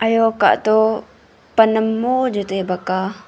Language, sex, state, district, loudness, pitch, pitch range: Wancho, female, Arunachal Pradesh, Longding, -17 LUFS, 220 Hz, 195-225 Hz